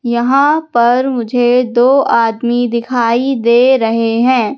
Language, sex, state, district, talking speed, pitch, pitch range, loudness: Hindi, female, Madhya Pradesh, Katni, 120 wpm, 240 Hz, 235-260 Hz, -12 LUFS